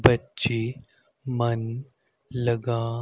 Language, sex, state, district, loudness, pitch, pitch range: Hindi, male, Haryana, Rohtak, -27 LUFS, 120 Hz, 115-125 Hz